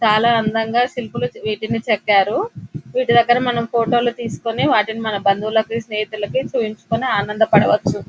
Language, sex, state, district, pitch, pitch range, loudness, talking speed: Telugu, female, Telangana, Nalgonda, 225 Hz, 215-235 Hz, -18 LUFS, 135 wpm